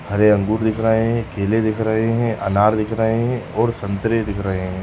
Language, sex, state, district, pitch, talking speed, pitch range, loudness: Bhojpuri, male, Uttar Pradesh, Gorakhpur, 110 Hz, 225 wpm, 100-115 Hz, -19 LUFS